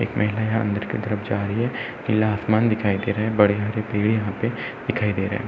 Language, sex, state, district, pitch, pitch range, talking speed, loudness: Hindi, male, Uttar Pradesh, Etah, 105 Hz, 100-110 Hz, 265 wpm, -23 LUFS